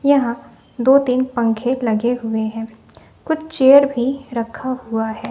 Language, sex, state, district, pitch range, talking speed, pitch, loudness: Hindi, female, Bihar, West Champaran, 225-270 Hz, 145 wpm, 250 Hz, -18 LUFS